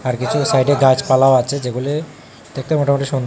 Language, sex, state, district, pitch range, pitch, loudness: Bengali, male, Tripura, West Tripura, 130-140 Hz, 135 Hz, -16 LUFS